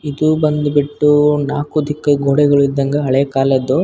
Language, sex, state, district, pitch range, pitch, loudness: Kannada, male, Karnataka, Bellary, 140-150 Hz, 145 Hz, -15 LUFS